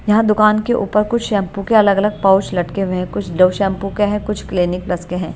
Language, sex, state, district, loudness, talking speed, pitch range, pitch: Hindi, female, Bihar, Katihar, -16 LUFS, 245 wpm, 185-210 Hz, 200 Hz